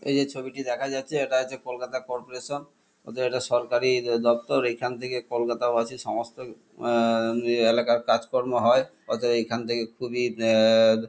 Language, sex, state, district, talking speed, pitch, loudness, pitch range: Bengali, male, West Bengal, Kolkata, 145 wpm, 120 Hz, -25 LUFS, 115-130 Hz